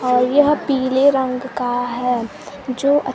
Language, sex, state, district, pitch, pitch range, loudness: Hindi, female, Bihar, Kaimur, 260 Hz, 250-280 Hz, -18 LUFS